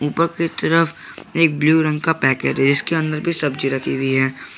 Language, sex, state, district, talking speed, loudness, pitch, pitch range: Hindi, male, Jharkhand, Garhwa, 210 wpm, -18 LUFS, 155 Hz, 135-165 Hz